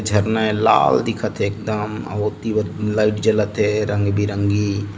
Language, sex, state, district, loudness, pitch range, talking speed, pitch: Hindi, male, Chhattisgarh, Bilaspur, -19 LUFS, 105-110 Hz, 170 wpm, 105 Hz